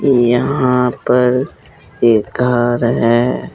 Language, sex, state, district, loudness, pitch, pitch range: Hindi, male, Jharkhand, Deoghar, -14 LUFS, 125 Hz, 120-125 Hz